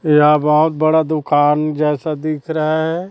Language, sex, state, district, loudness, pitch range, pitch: Hindi, female, Chhattisgarh, Raipur, -15 LUFS, 150-155 Hz, 155 Hz